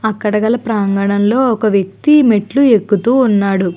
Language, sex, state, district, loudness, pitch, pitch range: Telugu, female, Andhra Pradesh, Chittoor, -13 LUFS, 215 Hz, 200-240 Hz